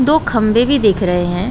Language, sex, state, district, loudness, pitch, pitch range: Hindi, female, Uttar Pradesh, Jalaun, -14 LUFS, 220 Hz, 185-245 Hz